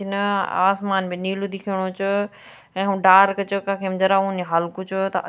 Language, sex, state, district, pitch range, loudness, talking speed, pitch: Garhwali, female, Uttarakhand, Tehri Garhwal, 190-200 Hz, -21 LUFS, 170 wpm, 195 Hz